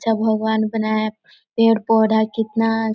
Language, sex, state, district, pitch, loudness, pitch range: Hindi, female, Chhattisgarh, Korba, 220 Hz, -19 LUFS, 220-225 Hz